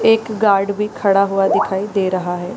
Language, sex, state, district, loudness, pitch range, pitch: Hindi, female, Bihar, East Champaran, -17 LUFS, 190-210 Hz, 200 Hz